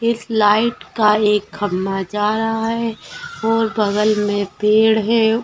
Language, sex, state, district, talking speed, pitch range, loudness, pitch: Hindi, female, Bihar, Sitamarhi, 145 wpm, 210-225 Hz, -17 LUFS, 215 Hz